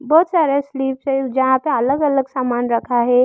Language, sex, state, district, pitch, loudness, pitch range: Hindi, female, Arunachal Pradesh, Lower Dibang Valley, 265 Hz, -18 LUFS, 250-280 Hz